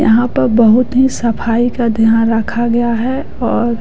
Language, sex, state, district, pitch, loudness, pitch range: Hindi, female, Bihar, West Champaran, 235 Hz, -13 LUFS, 230-245 Hz